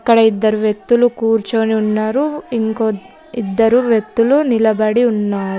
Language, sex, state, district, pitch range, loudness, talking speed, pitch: Telugu, female, Telangana, Komaram Bheem, 215-240 Hz, -15 LUFS, 105 wpm, 225 Hz